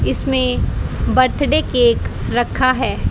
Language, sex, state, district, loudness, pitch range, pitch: Hindi, female, Haryana, Charkhi Dadri, -17 LUFS, 255-260 Hz, 255 Hz